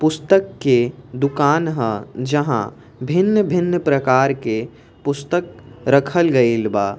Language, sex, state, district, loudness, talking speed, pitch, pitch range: Bhojpuri, male, Bihar, East Champaran, -18 LUFS, 105 wpm, 140 Hz, 120-155 Hz